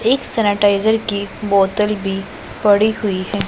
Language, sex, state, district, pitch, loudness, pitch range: Hindi, female, Punjab, Pathankot, 205 Hz, -17 LUFS, 200-215 Hz